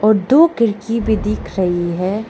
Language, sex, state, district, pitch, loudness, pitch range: Hindi, female, Arunachal Pradesh, Lower Dibang Valley, 215 Hz, -16 LUFS, 190-230 Hz